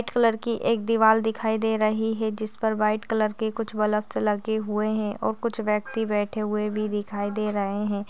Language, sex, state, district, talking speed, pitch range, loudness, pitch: Hindi, female, Chhattisgarh, Raigarh, 210 wpm, 210-220 Hz, -25 LUFS, 215 Hz